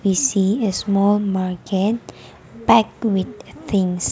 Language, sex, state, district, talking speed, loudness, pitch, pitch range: English, female, Nagaland, Kohima, 115 wpm, -19 LUFS, 200 Hz, 190-215 Hz